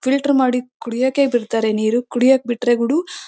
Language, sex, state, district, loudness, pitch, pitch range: Kannada, female, Karnataka, Bellary, -18 LUFS, 250 Hz, 240-265 Hz